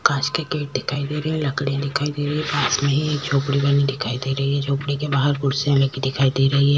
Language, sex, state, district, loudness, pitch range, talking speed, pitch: Hindi, female, Chhattisgarh, Korba, -21 LUFS, 140-145 Hz, 265 wpm, 140 Hz